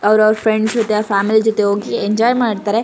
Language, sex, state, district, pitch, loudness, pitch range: Kannada, female, Karnataka, Shimoga, 215 Hz, -15 LUFS, 210-220 Hz